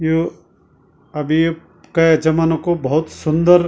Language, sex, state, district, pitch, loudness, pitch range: Garhwali, male, Uttarakhand, Tehri Garhwal, 160 Hz, -17 LUFS, 155-165 Hz